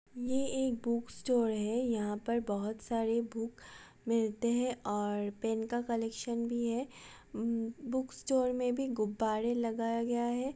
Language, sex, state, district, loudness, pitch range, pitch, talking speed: Hindi, female, Uttar Pradesh, Budaun, -34 LUFS, 225-245 Hz, 235 Hz, 150 wpm